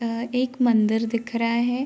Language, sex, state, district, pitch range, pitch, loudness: Hindi, female, Uttar Pradesh, Varanasi, 230-250 Hz, 235 Hz, -23 LUFS